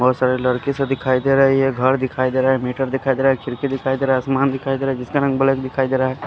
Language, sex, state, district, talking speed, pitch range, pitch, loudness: Hindi, male, Delhi, New Delhi, 345 wpm, 130-135 Hz, 135 Hz, -19 LUFS